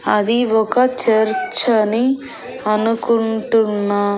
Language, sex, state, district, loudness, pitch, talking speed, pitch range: Telugu, female, Andhra Pradesh, Annamaya, -16 LUFS, 225 Hz, 70 wpm, 215-250 Hz